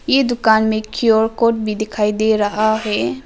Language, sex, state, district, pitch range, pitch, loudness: Hindi, female, Arunachal Pradesh, Papum Pare, 215-225 Hz, 220 Hz, -16 LUFS